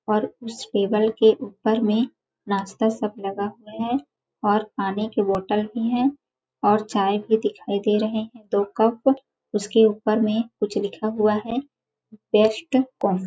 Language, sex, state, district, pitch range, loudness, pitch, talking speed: Hindi, female, Chhattisgarh, Balrampur, 210-230 Hz, -23 LUFS, 215 Hz, 165 wpm